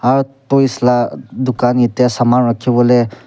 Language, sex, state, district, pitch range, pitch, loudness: Nagamese, male, Nagaland, Kohima, 120-130 Hz, 125 Hz, -14 LUFS